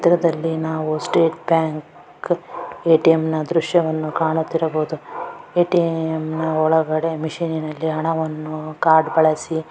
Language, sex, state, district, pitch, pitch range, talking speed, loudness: Kannada, female, Karnataka, Dakshina Kannada, 160 Hz, 155-165 Hz, 95 wpm, -20 LUFS